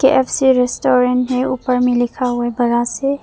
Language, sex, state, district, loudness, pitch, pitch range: Hindi, female, Arunachal Pradesh, Papum Pare, -16 LUFS, 250 Hz, 245-265 Hz